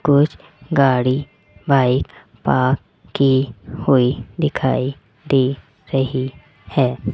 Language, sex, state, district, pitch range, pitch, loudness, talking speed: Hindi, female, Rajasthan, Jaipur, 125-140 Hz, 130 Hz, -19 LUFS, 85 wpm